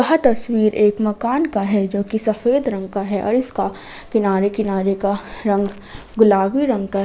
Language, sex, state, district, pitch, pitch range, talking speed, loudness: Hindi, female, Jharkhand, Ranchi, 210 Hz, 200-235 Hz, 180 wpm, -19 LUFS